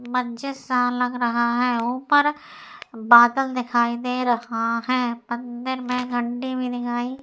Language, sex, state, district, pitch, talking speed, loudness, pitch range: Hindi, female, Uttar Pradesh, Etah, 245 Hz, 140 wpm, -22 LUFS, 240-255 Hz